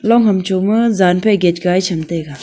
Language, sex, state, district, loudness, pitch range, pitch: Wancho, female, Arunachal Pradesh, Longding, -14 LUFS, 175-215 Hz, 185 Hz